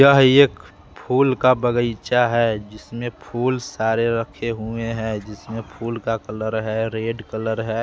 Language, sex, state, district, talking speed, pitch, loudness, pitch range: Hindi, male, Bihar, West Champaran, 160 wpm, 115 Hz, -21 LUFS, 110-120 Hz